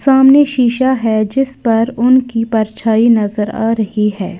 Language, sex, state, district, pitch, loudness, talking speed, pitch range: Hindi, female, Uttar Pradesh, Lalitpur, 230 Hz, -13 LUFS, 150 wpm, 220-260 Hz